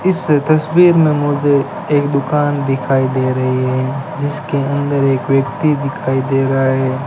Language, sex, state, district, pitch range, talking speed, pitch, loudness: Hindi, male, Rajasthan, Bikaner, 135-150 Hz, 155 wpm, 140 Hz, -15 LUFS